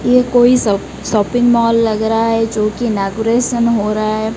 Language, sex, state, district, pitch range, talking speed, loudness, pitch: Hindi, female, Odisha, Malkangiri, 215-240 Hz, 190 wpm, -14 LUFS, 225 Hz